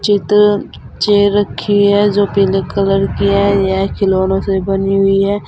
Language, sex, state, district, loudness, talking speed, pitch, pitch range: Hindi, female, Uttar Pradesh, Saharanpur, -13 LUFS, 165 wpm, 200 Hz, 195-205 Hz